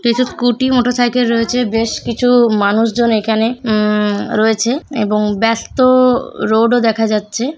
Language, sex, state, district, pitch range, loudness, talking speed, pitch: Bengali, male, West Bengal, Jalpaiguri, 220-245 Hz, -14 LUFS, 120 wpm, 230 Hz